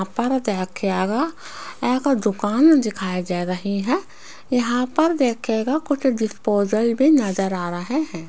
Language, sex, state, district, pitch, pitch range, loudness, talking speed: Hindi, female, Rajasthan, Jaipur, 230 Hz, 195-275 Hz, -21 LUFS, 135 wpm